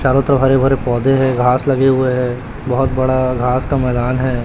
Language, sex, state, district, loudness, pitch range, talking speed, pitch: Hindi, male, Chhattisgarh, Raipur, -15 LUFS, 125-135 Hz, 215 wpm, 130 Hz